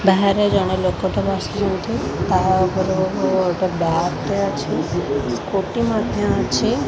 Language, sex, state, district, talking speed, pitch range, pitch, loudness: Odia, female, Odisha, Khordha, 120 wpm, 180-195 Hz, 185 Hz, -20 LUFS